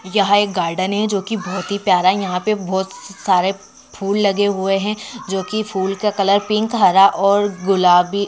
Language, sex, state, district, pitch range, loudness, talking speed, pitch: Hindi, female, Karnataka, Bijapur, 190-205 Hz, -17 LUFS, 190 wpm, 195 Hz